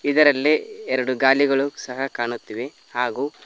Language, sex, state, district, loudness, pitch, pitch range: Kannada, male, Karnataka, Koppal, -21 LUFS, 135 Hz, 130-145 Hz